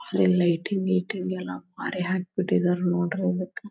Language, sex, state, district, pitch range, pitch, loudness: Kannada, female, Karnataka, Belgaum, 175-190 Hz, 180 Hz, -26 LUFS